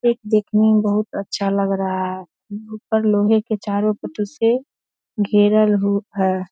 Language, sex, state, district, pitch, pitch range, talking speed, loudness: Hindi, female, Bihar, Darbhanga, 210 Hz, 200-215 Hz, 155 wpm, -19 LUFS